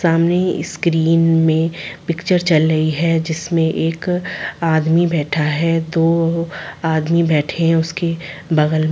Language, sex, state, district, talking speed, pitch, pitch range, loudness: Hindi, female, Chhattisgarh, Sarguja, 135 wpm, 165 Hz, 160-170 Hz, -17 LUFS